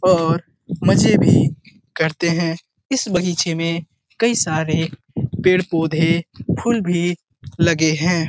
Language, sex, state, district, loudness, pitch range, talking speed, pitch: Hindi, male, Bihar, Lakhisarai, -18 LUFS, 160-180 Hz, 115 wpm, 170 Hz